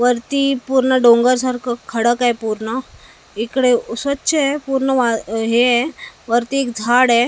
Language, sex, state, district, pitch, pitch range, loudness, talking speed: Marathi, female, Maharashtra, Mumbai Suburban, 245 Hz, 235-265 Hz, -17 LUFS, 140 wpm